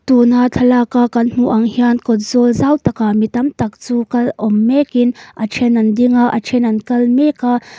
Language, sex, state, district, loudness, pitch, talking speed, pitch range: Mizo, female, Mizoram, Aizawl, -14 LUFS, 245 Hz, 210 wpm, 230-245 Hz